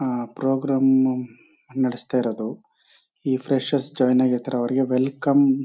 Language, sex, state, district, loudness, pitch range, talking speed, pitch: Kannada, male, Karnataka, Chamarajanagar, -22 LUFS, 125-135 Hz, 115 wpm, 130 Hz